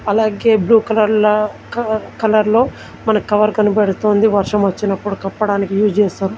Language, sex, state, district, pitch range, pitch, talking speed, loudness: Telugu, male, Telangana, Komaram Bheem, 205-220 Hz, 210 Hz, 120 wpm, -15 LUFS